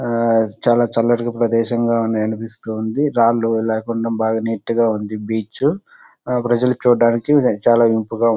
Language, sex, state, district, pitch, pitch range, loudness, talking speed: Telugu, male, Andhra Pradesh, Chittoor, 115 Hz, 110-120 Hz, -18 LUFS, 130 wpm